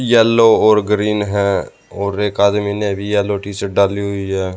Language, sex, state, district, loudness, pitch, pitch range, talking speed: Hindi, male, Haryana, Rohtak, -15 LUFS, 100 Hz, 100-105 Hz, 195 wpm